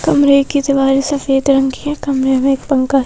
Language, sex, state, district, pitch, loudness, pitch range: Hindi, female, Madhya Pradesh, Bhopal, 275 Hz, -14 LUFS, 270-280 Hz